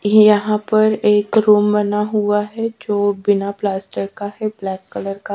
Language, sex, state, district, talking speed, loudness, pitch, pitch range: Hindi, female, Haryana, Charkhi Dadri, 190 wpm, -17 LUFS, 210 Hz, 205-215 Hz